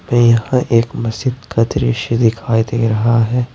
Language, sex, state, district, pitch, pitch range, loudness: Hindi, male, Jharkhand, Ranchi, 115 Hz, 115-125 Hz, -15 LUFS